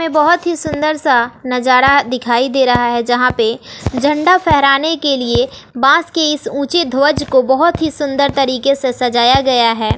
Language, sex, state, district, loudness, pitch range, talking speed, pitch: Hindi, female, Bihar, West Champaran, -13 LUFS, 250-300 Hz, 180 wpm, 275 Hz